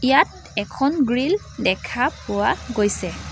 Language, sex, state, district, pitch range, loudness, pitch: Assamese, female, Assam, Sonitpur, 245-280 Hz, -21 LUFS, 265 Hz